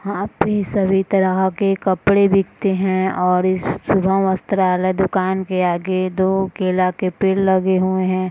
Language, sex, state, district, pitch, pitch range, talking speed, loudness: Hindi, female, Bihar, Madhepura, 190 Hz, 185-195 Hz, 150 wpm, -18 LUFS